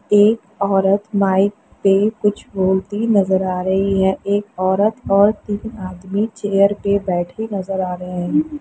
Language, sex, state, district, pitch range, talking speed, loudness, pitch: Hindi, female, Bihar, Jamui, 190-205 Hz, 155 wpm, -18 LUFS, 195 Hz